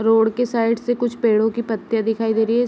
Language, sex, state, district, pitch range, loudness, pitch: Hindi, female, Uttar Pradesh, Varanasi, 220-235 Hz, -20 LUFS, 225 Hz